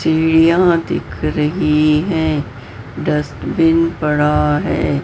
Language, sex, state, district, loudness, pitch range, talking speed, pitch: Hindi, female, Maharashtra, Mumbai Suburban, -15 LUFS, 125-160 Hz, 85 wpm, 150 Hz